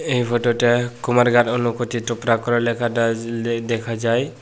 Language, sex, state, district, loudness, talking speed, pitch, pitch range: Bengali, male, Tripura, Unakoti, -20 LUFS, 120 wpm, 120 Hz, 115-120 Hz